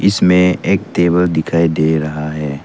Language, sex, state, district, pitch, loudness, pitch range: Hindi, male, Arunachal Pradesh, Papum Pare, 80 Hz, -14 LUFS, 75-90 Hz